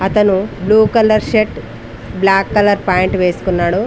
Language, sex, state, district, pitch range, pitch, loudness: Telugu, female, Telangana, Mahabubabad, 180-210 Hz, 195 Hz, -13 LUFS